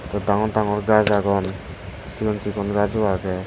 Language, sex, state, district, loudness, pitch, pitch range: Chakma, male, Tripura, West Tripura, -21 LUFS, 100 Hz, 95-105 Hz